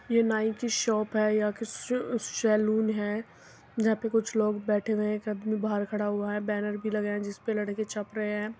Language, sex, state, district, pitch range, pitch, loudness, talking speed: Hindi, female, Uttar Pradesh, Muzaffarnagar, 210-220 Hz, 215 Hz, -29 LUFS, 225 wpm